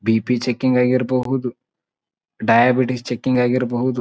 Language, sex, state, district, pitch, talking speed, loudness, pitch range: Kannada, male, Karnataka, Bijapur, 125 Hz, 90 wpm, -18 LUFS, 120-130 Hz